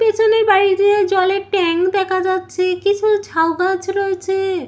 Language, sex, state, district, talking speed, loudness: Bengali, female, West Bengal, Malda, 115 wpm, -16 LUFS